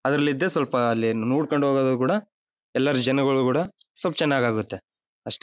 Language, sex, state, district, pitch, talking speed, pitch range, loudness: Kannada, male, Karnataka, Bellary, 130 Hz, 165 wpm, 120-140 Hz, -23 LUFS